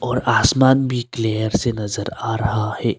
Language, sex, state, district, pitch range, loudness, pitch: Hindi, male, Arunachal Pradesh, Longding, 110-125 Hz, -19 LUFS, 115 Hz